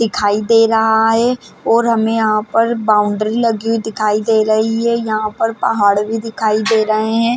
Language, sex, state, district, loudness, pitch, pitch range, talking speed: Hindi, female, Maharashtra, Chandrapur, -15 LUFS, 220 Hz, 215-230 Hz, 185 wpm